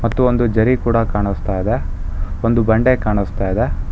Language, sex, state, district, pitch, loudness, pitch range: Kannada, male, Karnataka, Bangalore, 105 Hz, -17 LUFS, 95-115 Hz